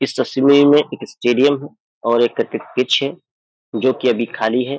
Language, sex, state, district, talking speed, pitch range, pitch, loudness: Hindi, male, Uttar Pradesh, Jyotiba Phule Nagar, 190 wpm, 120-140 Hz, 130 Hz, -17 LUFS